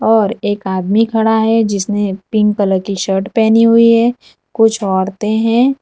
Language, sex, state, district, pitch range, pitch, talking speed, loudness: Hindi, female, Gujarat, Valsad, 200-225 Hz, 215 Hz, 165 wpm, -13 LUFS